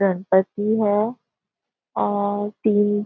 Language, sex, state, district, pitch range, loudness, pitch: Hindi, female, Maharashtra, Nagpur, 200-210 Hz, -21 LUFS, 205 Hz